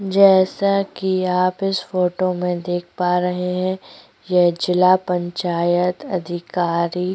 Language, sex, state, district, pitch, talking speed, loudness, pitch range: Hindi, female, Chhattisgarh, Korba, 180 Hz, 115 wpm, -19 LUFS, 175-185 Hz